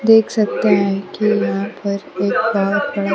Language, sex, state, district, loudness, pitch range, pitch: Hindi, female, Bihar, Kaimur, -17 LUFS, 195-215 Hz, 200 Hz